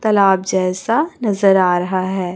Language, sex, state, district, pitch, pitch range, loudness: Hindi, female, Chhattisgarh, Raipur, 190 Hz, 185-210 Hz, -16 LUFS